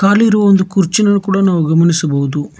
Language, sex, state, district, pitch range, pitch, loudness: Kannada, male, Karnataka, Bangalore, 165-200 Hz, 190 Hz, -12 LUFS